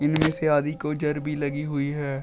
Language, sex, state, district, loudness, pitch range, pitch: Hindi, male, Uttar Pradesh, Shamli, -25 LUFS, 145-150 Hz, 150 Hz